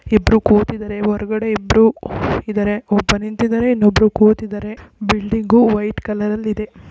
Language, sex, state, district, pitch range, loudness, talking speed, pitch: Kannada, female, Karnataka, Belgaum, 210-220 Hz, -16 LUFS, 105 wpm, 215 Hz